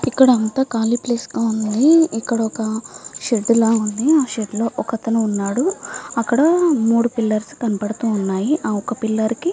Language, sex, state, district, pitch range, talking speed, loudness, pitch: Telugu, female, Andhra Pradesh, Visakhapatnam, 220-255 Hz, 170 wpm, -18 LUFS, 230 Hz